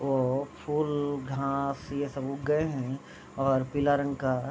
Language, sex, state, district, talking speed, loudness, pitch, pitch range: Hindi, male, Bihar, Vaishali, 175 wpm, -30 LUFS, 140 Hz, 135-145 Hz